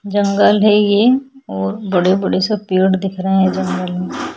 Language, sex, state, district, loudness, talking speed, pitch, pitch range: Hindi, female, Chhattisgarh, Sukma, -15 LUFS, 165 wpm, 190 Hz, 180-210 Hz